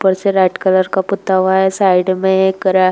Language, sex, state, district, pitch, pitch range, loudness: Hindi, female, Uttar Pradesh, Jalaun, 190 Hz, 185-190 Hz, -14 LUFS